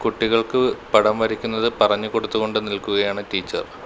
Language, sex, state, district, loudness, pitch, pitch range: Malayalam, male, Kerala, Kollam, -21 LUFS, 110 Hz, 100-115 Hz